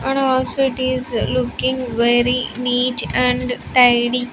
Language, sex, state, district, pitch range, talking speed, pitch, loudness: English, female, Andhra Pradesh, Sri Satya Sai, 245-255 Hz, 125 wpm, 250 Hz, -17 LUFS